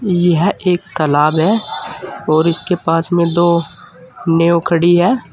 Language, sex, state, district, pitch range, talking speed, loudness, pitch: Hindi, male, Uttar Pradesh, Saharanpur, 165-180 Hz, 135 wpm, -14 LUFS, 170 Hz